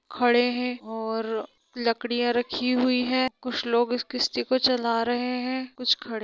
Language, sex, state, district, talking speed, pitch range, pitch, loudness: Hindi, female, Bihar, Sitamarhi, 175 wpm, 235-250 Hz, 245 Hz, -25 LUFS